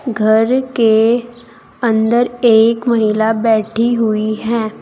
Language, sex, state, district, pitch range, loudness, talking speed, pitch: Hindi, female, Uttar Pradesh, Saharanpur, 220-235 Hz, -14 LUFS, 100 wpm, 230 Hz